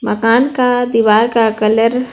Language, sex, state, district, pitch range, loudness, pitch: Hindi, female, Bihar, Patna, 220-245 Hz, -13 LUFS, 230 Hz